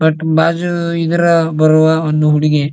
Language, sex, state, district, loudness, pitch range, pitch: Kannada, male, Karnataka, Dharwad, -13 LUFS, 155-170 Hz, 160 Hz